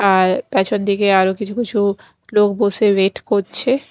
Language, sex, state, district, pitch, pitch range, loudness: Bengali, female, Chhattisgarh, Raipur, 200 Hz, 195-210 Hz, -16 LUFS